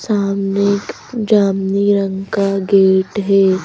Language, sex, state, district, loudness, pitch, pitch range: Hindi, female, Madhya Pradesh, Bhopal, -15 LUFS, 195 Hz, 195-200 Hz